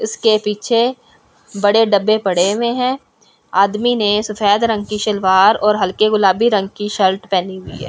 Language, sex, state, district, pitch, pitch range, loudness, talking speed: Hindi, female, Delhi, New Delhi, 210 Hz, 195-220 Hz, -15 LUFS, 165 wpm